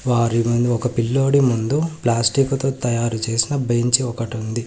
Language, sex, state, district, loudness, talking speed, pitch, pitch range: Telugu, male, Telangana, Hyderabad, -19 LUFS, 140 wpm, 120 Hz, 115-135 Hz